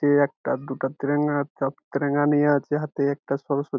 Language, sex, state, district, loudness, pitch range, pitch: Bengali, male, West Bengal, Jhargram, -24 LUFS, 140-145 Hz, 145 Hz